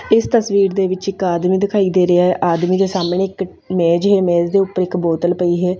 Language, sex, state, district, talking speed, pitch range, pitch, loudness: Punjabi, female, Punjab, Fazilka, 235 wpm, 175-195 Hz, 185 Hz, -16 LUFS